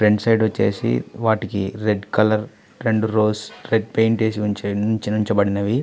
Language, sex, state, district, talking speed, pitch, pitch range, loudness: Telugu, male, Andhra Pradesh, Visakhapatnam, 135 wpm, 105 Hz, 105-110 Hz, -20 LUFS